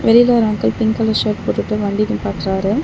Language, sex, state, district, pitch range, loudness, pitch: Tamil, female, Tamil Nadu, Chennai, 210-225 Hz, -16 LUFS, 215 Hz